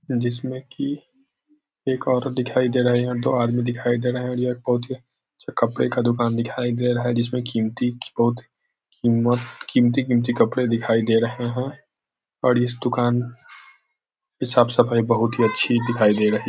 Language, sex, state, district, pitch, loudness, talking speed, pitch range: Hindi, male, Bihar, Saran, 120 Hz, -22 LUFS, 180 wpm, 120-125 Hz